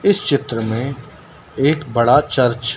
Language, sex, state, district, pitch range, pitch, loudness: Hindi, male, Madhya Pradesh, Dhar, 120-150 Hz, 140 Hz, -17 LUFS